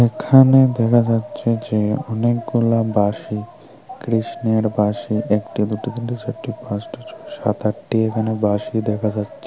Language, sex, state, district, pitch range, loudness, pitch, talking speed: Bengali, female, Tripura, Unakoti, 105-120 Hz, -19 LUFS, 115 Hz, 120 wpm